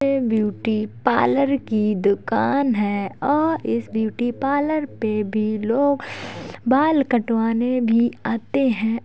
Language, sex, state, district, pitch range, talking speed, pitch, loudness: Hindi, female, Uttar Pradesh, Jalaun, 220-275 Hz, 120 wpm, 235 Hz, -21 LUFS